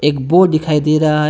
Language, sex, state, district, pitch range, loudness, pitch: Hindi, male, West Bengal, Alipurduar, 150-155 Hz, -13 LUFS, 150 Hz